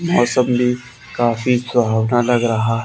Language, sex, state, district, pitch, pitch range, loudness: Hindi, male, Haryana, Charkhi Dadri, 120 Hz, 115-125 Hz, -17 LUFS